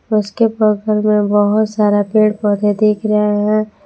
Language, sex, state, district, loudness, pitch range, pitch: Hindi, female, Jharkhand, Palamu, -14 LUFS, 205-215 Hz, 210 Hz